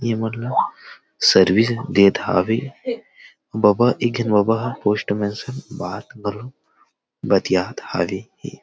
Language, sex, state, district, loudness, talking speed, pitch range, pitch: Chhattisgarhi, male, Chhattisgarh, Rajnandgaon, -20 LUFS, 125 wpm, 105-120 Hz, 115 Hz